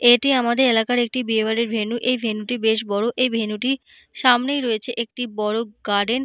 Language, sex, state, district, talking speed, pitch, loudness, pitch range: Bengali, female, West Bengal, Paschim Medinipur, 220 wpm, 235 Hz, -21 LUFS, 220-250 Hz